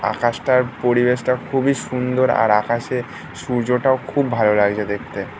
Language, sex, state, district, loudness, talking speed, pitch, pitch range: Bengali, male, West Bengal, North 24 Parganas, -19 LUFS, 145 wpm, 120 Hz, 105-125 Hz